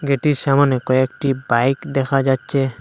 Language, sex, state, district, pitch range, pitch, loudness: Bengali, male, Assam, Hailakandi, 130-140 Hz, 135 Hz, -18 LUFS